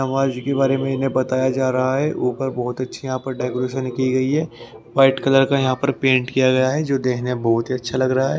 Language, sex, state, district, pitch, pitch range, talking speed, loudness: Hindi, male, Haryana, Rohtak, 130 Hz, 130-135 Hz, 255 wpm, -20 LUFS